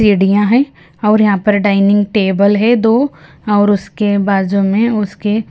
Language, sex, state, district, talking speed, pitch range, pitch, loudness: Hindi, female, Himachal Pradesh, Shimla, 150 wpm, 200-215 Hz, 205 Hz, -13 LUFS